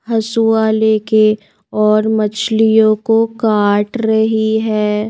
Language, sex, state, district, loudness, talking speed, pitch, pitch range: Hindi, female, Madhya Pradesh, Bhopal, -14 LUFS, 95 wpm, 220 Hz, 215-220 Hz